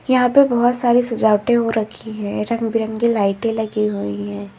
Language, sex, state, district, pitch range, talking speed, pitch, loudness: Hindi, female, Uttar Pradesh, Lalitpur, 210-240 Hz, 185 wpm, 225 Hz, -18 LUFS